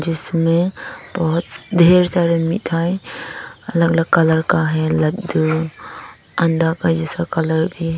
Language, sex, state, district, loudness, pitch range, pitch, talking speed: Hindi, female, Arunachal Pradesh, Papum Pare, -17 LUFS, 160-170 Hz, 165 Hz, 120 wpm